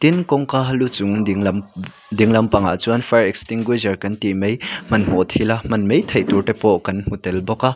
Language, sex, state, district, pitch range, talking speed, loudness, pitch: Mizo, male, Mizoram, Aizawl, 100-115 Hz, 215 wpm, -18 LUFS, 110 Hz